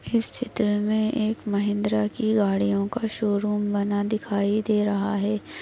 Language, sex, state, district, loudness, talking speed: Hindi, female, Maharashtra, Aurangabad, -24 LUFS, 140 wpm